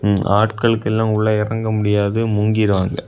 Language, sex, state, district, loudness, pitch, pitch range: Tamil, male, Tamil Nadu, Kanyakumari, -17 LUFS, 105 Hz, 105-110 Hz